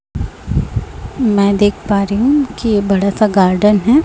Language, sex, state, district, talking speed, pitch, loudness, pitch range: Hindi, male, Chhattisgarh, Raipur, 160 wpm, 205 Hz, -14 LUFS, 200-230 Hz